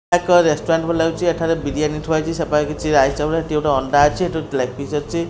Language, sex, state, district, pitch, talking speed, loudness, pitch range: Odia, male, Odisha, Khordha, 155 Hz, 240 wpm, -18 LUFS, 150-165 Hz